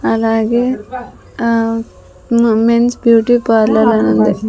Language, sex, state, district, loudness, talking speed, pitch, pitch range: Telugu, female, Andhra Pradesh, Sri Satya Sai, -13 LUFS, 95 wpm, 225 Hz, 220-235 Hz